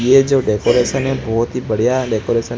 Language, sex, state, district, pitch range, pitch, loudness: Hindi, male, Gujarat, Gandhinagar, 115-135 Hz, 120 Hz, -16 LUFS